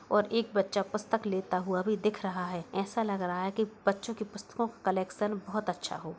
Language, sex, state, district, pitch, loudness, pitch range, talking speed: Hindi, female, Uttar Pradesh, Budaun, 205 Hz, -32 LUFS, 190-215 Hz, 225 wpm